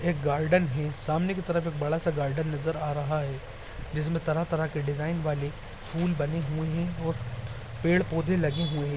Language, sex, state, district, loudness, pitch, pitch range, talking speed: Hindi, male, Bihar, Araria, -29 LUFS, 155 Hz, 145-165 Hz, 195 wpm